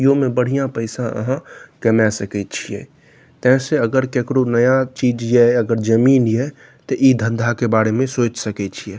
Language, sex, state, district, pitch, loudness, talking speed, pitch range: Maithili, male, Bihar, Saharsa, 120 Hz, -17 LUFS, 165 wpm, 115-130 Hz